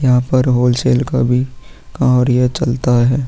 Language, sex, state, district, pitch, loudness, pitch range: Hindi, male, Uttarakhand, Tehri Garhwal, 125 Hz, -14 LUFS, 125-130 Hz